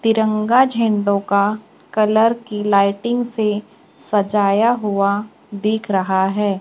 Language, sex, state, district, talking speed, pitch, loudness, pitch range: Hindi, female, Maharashtra, Gondia, 110 wpm, 210 Hz, -18 LUFS, 200-220 Hz